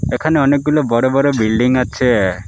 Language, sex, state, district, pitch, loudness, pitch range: Bengali, male, West Bengal, Alipurduar, 130 Hz, -14 LUFS, 115-140 Hz